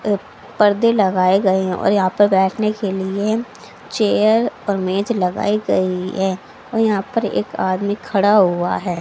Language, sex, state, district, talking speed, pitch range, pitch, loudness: Hindi, female, Haryana, Charkhi Dadri, 165 wpm, 190-215 Hz, 200 Hz, -18 LUFS